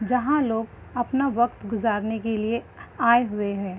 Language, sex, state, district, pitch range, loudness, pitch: Hindi, female, Uttar Pradesh, Hamirpur, 215-245 Hz, -24 LUFS, 225 Hz